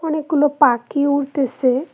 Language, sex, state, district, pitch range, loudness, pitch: Bengali, female, West Bengal, Cooch Behar, 265-295 Hz, -18 LUFS, 285 Hz